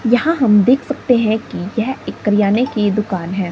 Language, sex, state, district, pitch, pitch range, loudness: Hindi, female, Himachal Pradesh, Shimla, 220 Hz, 205-245 Hz, -16 LUFS